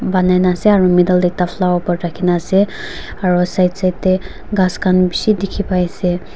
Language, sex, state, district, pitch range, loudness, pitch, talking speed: Nagamese, female, Nagaland, Dimapur, 180-190 Hz, -15 LUFS, 180 Hz, 190 wpm